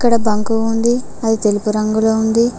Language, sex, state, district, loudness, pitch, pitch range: Telugu, female, Telangana, Mahabubabad, -16 LUFS, 225 Hz, 215-230 Hz